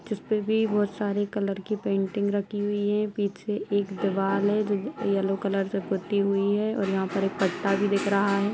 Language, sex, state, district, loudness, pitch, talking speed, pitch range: Hindi, female, Bihar, Saran, -26 LUFS, 200 Hz, 210 wpm, 195-205 Hz